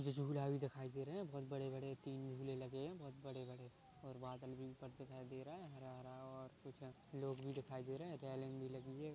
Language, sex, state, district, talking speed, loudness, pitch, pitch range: Hindi, male, Chhattisgarh, Kabirdham, 255 wpm, -50 LUFS, 135 Hz, 130-140 Hz